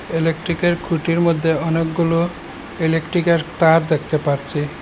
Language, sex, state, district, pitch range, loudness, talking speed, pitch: Bengali, male, Assam, Hailakandi, 160-170 Hz, -18 LUFS, 100 wpm, 165 Hz